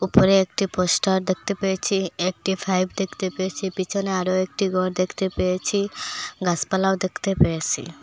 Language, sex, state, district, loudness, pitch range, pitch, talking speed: Bengali, female, Assam, Hailakandi, -23 LUFS, 185-195 Hz, 190 Hz, 135 wpm